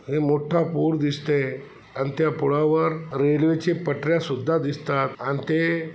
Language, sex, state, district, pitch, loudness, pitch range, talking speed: Marathi, male, Maharashtra, Chandrapur, 150 Hz, -23 LUFS, 140-160 Hz, 140 wpm